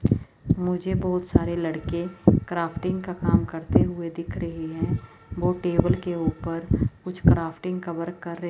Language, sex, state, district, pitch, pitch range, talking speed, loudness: Hindi, female, Chandigarh, Chandigarh, 170 Hz, 160-180 Hz, 155 wpm, -25 LUFS